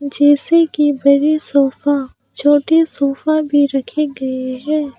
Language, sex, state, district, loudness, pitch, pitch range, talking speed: Hindi, female, Arunachal Pradesh, Papum Pare, -15 LUFS, 290 Hz, 275-305 Hz, 120 wpm